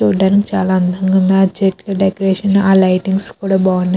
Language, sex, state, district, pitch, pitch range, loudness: Telugu, female, Andhra Pradesh, Krishna, 190 Hz, 185-195 Hz, -14 LUFS